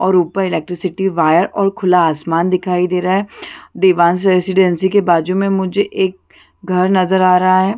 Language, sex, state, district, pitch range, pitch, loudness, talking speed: Hindi, female, Chhattisgarh, Bastar, 180-190 Hz, 185 Hz, -14 LUFS, 175 wpm